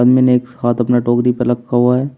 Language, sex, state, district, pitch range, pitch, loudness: Hindi, male, Uttar Pradesh, Shamli, 120-125 Hz, 125 Hz, -14 LUFS